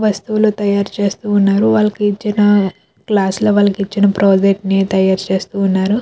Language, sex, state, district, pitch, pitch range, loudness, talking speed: Telugu, female, Andhra Pradesh, Krishna, 200 Hz, 195-210 Hz, -14 LUFS, 150 wpm